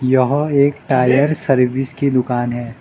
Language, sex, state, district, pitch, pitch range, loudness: Hindi, male, Arunachal Pradesh, Lower Dibang Valley, 130 Hz, 125-140 Hz, -16 LUFS